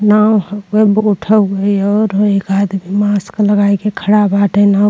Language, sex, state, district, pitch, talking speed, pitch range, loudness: Bhojpuri, female, Uttar Pradesh, Deoria, 205 Hz, 185 wpm, 200-210 Hz, -12 LUFS